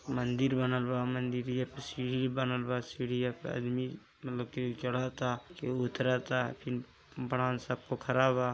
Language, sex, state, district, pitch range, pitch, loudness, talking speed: Hindi, male, Uttar Pradesh, Gorakhpur, 125-130 Hz, 125 Hz, -34 LUFS, 160 wpm